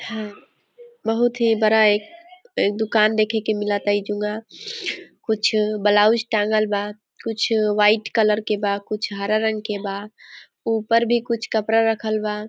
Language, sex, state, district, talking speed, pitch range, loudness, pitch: Hindi, female, Jharkhand, Sahebganj, 145 wpm, 210-225 Hz, -21 LUFS, 215 Hz